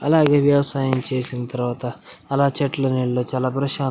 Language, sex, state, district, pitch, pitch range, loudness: Telugu, male, Andhra Pradesh, Anantapur, 135 Hz, 125-140 Hz, -21 LUFS